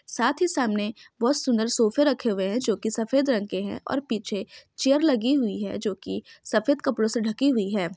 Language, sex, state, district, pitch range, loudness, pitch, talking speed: Hindi, female, Bihar, Saran, 210-275 Hz, -25 LUFS, 235 Hz, 220 wpm